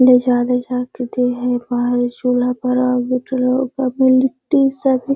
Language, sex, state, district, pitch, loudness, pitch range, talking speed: Magahi, female, Bihar, Gaya, 250 Hz, -17 LUFS, 245-260 Hz, 130 wpm